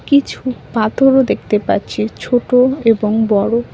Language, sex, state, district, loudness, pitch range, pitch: Bengali, female, West Bengal, Cooch Behar, -15 LUFS, 210-255 Hz, 225 Hz